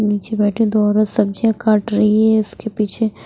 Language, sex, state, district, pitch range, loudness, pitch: Hindi, female, Bihar, West Champaran, 210-220 Hz, -16 LUFS, 215 Hz